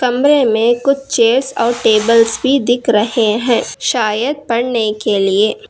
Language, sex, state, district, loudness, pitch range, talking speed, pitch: Hindi, female, Karnataka, Bangalore, -14 LUFS, 220-260 Hz, 145 wpm, 235 Hz